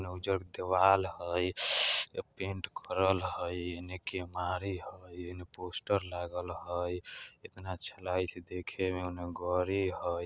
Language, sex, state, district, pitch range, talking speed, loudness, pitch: Bajjika, male, Bihar, Vaishali, 90-95 Hz, 135 wpm, -34 LUFS, 90 Hz